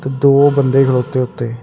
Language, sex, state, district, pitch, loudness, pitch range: Punjabi, male, Karnataka, Bangalore, 135 Hz, -13 LUFS, 125-140 Hz